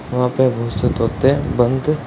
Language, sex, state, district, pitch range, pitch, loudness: Hindi, male, Bihar, Purnia, 125-140 Hz, 125 Hz, -17 LUFS